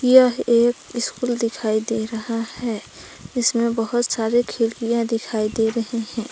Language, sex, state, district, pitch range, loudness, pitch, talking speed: Hindi, female, Jharkhand, Palamu, 225-240 Hz, -21 LUFS, 230 Hz, 140 wpm